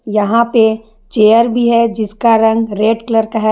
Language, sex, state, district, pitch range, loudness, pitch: Hindi, female, Jharkhand, Garhwa, 220-230 Hz, -12 LUFS, 225 Hz